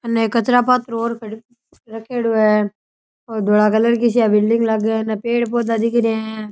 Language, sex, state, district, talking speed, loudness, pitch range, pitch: Rajasthani, male, Rajasthan, Churu, 185 wpm, -17 LUFS, 220-235 Hz, 225 Hz